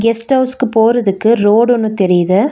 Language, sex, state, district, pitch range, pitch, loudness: Tamil, female, Tamil Nadu, Nilgiris, 205-245 Hz, 230 Hz, -12 LUFS